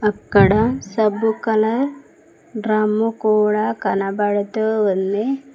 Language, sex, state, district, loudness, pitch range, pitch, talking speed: Telugu, female, Telangana, Mahabubabad, -18 LUFS, 205-225 Hz, 215 Hz, 75 wpm